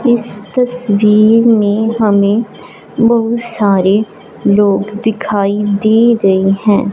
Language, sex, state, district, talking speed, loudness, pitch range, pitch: Hindi, male, Punjab, Fazilka, 95 wpm, -12 LUFS, 205-230 Hz, 210 Hz